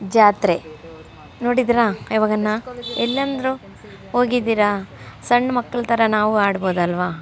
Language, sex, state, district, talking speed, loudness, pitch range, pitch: Kannada, female, Karnataka, Raichur, 90 wpm, -19 LUFS, 200-245 Hz, 220 Hz